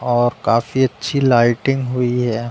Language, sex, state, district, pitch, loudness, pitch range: Hindi, male, Uttar Pradesh, Deoria, 125 Hz, -17 LUFS, 120-130 Hz